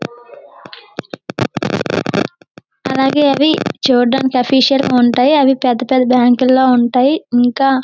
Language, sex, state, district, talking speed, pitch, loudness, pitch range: Telugu, female, Andhra Pradesh, Srikakulam, 90 wpm, 260 Hz, -13 LUFS, 245-270 Hz